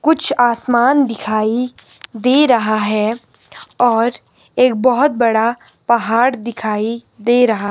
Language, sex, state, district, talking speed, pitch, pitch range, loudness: Hindi, male, Himachal Pradesh, Shimla, 110 wpm, 235 Hz, 220-250 Hz, -15 LUFS